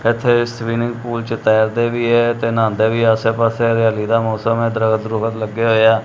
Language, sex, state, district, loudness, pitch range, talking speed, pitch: Punjabi, male, Punjab, Kapurthala, -16 LUFS, 110-115 Hz, 220 wpm, 115 Hz